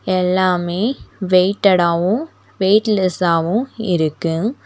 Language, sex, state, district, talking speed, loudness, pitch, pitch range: Tamil, female, Tamil Nadu, Nilgiris, 50 wpm, -17 LUFS, 185 Hz, 175-210 Hz